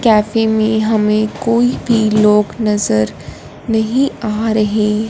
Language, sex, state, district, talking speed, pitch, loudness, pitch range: Hindi, female, Punjab, Fazilka, 115 wpm, 220 Hz, -14 LUFS, 210-225 Hz